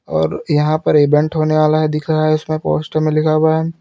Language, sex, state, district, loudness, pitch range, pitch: Hindi, male, Uttar Pradesh, Lalitpur, -15 LUFS, 150-155 Hz, 155 Hz